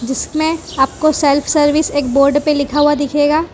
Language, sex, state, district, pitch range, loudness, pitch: Hindi, female, Gujarat, Valsad, 280-310 Hz, -14 LUFS, 290 Hz